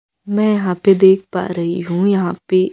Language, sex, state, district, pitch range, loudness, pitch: Hindi, female, Chhattisgarh, Raipur, 180-195 Hz, -16 LUFS, 185 Hz